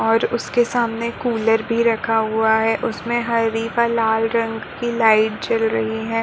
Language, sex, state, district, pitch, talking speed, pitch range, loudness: Hindi, female, Chhattisgarh, Bilaspur, 225 Hz, 175 wpm, 225-235 Hz, -19 LUFS